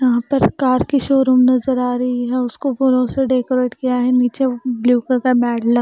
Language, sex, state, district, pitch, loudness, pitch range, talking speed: Hindi, female, Punjab, Pathankot, 255 Hz, -16 LUFS, 245-260 Hz, 215 wpm